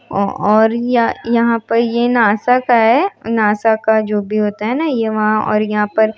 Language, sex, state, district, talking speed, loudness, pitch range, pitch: Hindi, female, Bihar, Muzaffarpur, 185 wpm, -15 LUFS, 215-235 Hz, 220 Hz